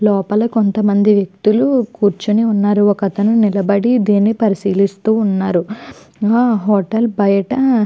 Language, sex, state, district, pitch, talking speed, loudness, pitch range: Telugu, female, Andhra Pradesh, Chittoor, 210 Hz, 100 wpm, -14 LUFS, 200-220 Hz